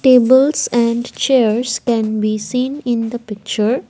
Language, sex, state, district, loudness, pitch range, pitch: English, female, Assam, Kamrup Metropolitan, -16 LUFS, 220-255 Hz, 240 Hz